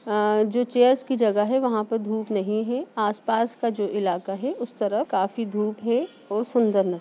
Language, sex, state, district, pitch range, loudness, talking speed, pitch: Hindi, female, Bihar, Sitamarhi, 210-245 Hz, -24 LUFS, 215 wpm, 220 Hz